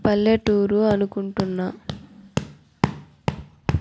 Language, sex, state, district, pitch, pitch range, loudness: Telugu, female, Andhra Pradesh, Annamaya, 205 Hz, 195-210 Hz, -23 LUFS